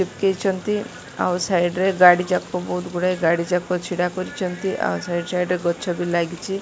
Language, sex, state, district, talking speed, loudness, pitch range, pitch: Odia, female, Odisha, Malkangiri, 180 wpm, -21 LUFS, 175-185 Hz, 180 Hz